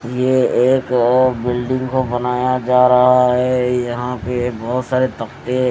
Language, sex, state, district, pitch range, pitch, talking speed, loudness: Hindi, male, Odisha, Nuapada, 125-130 Hz, 125 Hz, 135 wpm, -16 LUFS